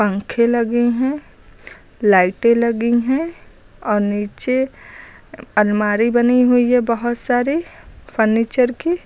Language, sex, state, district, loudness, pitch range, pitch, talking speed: Hindi, female, Uttar Pradesh, Lucknow, -17 LUFS, 220-250 Hz, 240 Hz, 105 wpm